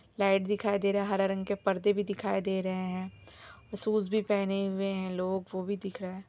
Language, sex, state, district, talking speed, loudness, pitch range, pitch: Hindi, female, Jharkhand, Sahebganj, 240 wpm, -31 LUFS, 190-200 Hz, 195 Hz